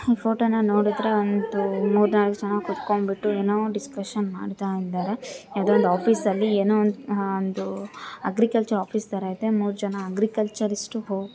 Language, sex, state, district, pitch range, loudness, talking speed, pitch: Kannada, female, Karnataka, Shimoga, 200-215 Hz, -24 LUFS, 155 wpm, 205 Hz